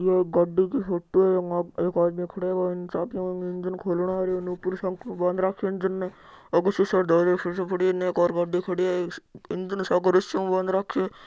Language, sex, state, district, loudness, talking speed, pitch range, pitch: Marwari, male, Rajasthan, Churu, -25 LUFS, 225 wpm, 180-185 Hz, 185 Hz